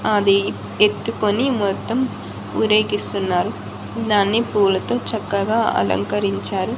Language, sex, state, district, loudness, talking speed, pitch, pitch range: Telugu, female, Andhra Pradesh, Annamaya, -20 LUFS, 70 wpm, 205 Hz, 195-220 Hz